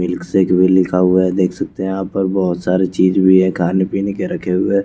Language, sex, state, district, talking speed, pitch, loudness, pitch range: Hindi, male, Chandigarh, Chandigarh, 250 wpm, 95 Hz, -15 LUFS, 90-95 Hz